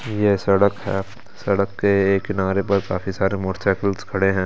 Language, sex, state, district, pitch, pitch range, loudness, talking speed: Hindi, male, Delhi, New Delhi, 100 Hz, 95-100 Hz, -21 LUFS, 175 wpm